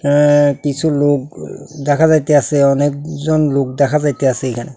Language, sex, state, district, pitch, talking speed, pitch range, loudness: Bengali, male, Tripura, South Tripura, 145 Hz, 125 wpm, 140-150 Hz, -14 LUFS